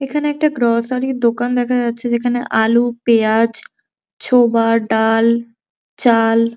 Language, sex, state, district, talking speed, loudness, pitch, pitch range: Bengali, male, West Bengal, Jhargram, 130 wpm, -16 LUFS, 235 Hz, 230-245 Hz